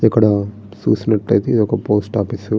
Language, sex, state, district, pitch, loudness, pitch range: Telugu, male, Andhra Pradesh, Srikakulam, 105 Hz, -17 LUFS, 100-110 Hz